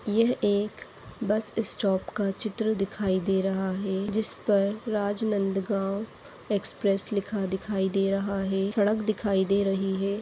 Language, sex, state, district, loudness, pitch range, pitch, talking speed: Hindi, female, Chhattisgarh, Rajnandgaon, -27 LUFS, 195-210 Hz, 200 Hz, 145 wpm